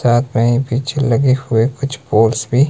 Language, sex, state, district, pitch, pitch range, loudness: Hindi, male, Himachal Pradesh, Shimla, 125 Hz, 115-135 Hz, -15 LUFS